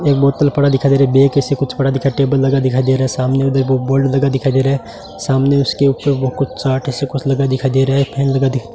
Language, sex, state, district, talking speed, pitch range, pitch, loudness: Hindi, male, Rajasthan, Bikaner, 310 wpm, 130-140 Hz, 135 Hz, -15 LUFS